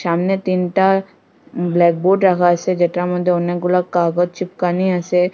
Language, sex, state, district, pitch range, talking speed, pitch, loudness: Bengali, female, Assam, Hailakandi, 175-185 Hz, 125 wpm, 180 Hz, -17 LUFS